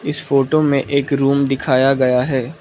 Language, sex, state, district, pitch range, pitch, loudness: Hindi, male, Arunachal Pradesh, Lower Dibang Valley, 135-145 Hz, 140 Hz, -16 LUFS